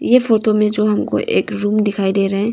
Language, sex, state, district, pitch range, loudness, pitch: Hindi, female, Arunachal Pradesh, Longding, 205-215 Hz, -16 LUFS, 210 Hz